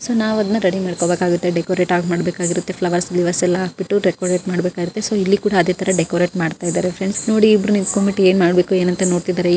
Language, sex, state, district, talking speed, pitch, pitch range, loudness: Kannada, female, Karnataka, Gulbarga, 180 wpm, 180 Hz, 175-195 Hz, -17 LUFS